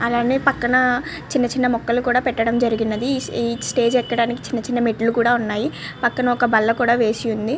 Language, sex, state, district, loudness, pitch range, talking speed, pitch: Telugu, female, Andhra Pradesh, Srikakulam, -19 LUFS, 230-245 Hz, 160 wpm, 240 Hz